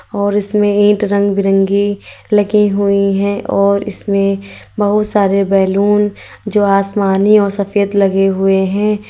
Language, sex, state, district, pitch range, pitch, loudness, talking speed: Hindi, female, Uttar Pradesh, Lalitpur, 195-205 Hz, 200 Hz, -13 LUFS, 130 wpm